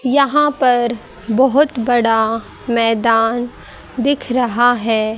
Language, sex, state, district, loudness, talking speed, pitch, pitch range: Hindi, female, Haryana, Charkhi Dadri, -15 LUFS, 90 wpm, 240 Hz, 225-260 Hz